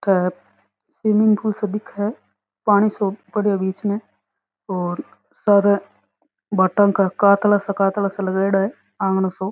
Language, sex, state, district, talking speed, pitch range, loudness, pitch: Rajasthani, female, Rajasthan, Nagaur, 140 wpm, 190-205 Hz, -20 LUFS, 200 Hz